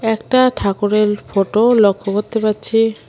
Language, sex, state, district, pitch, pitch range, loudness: Bengali, female, West Bengal, Alipurduar, 215 Hz, 205-225 Hz, -15 LUFS